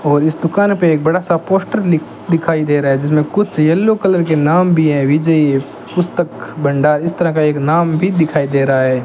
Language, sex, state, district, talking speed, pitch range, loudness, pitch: Hindi, male, Rajasthan, Bikaner, 225 wpm, 150-175 Hz, -14 LUFS, 160 Hz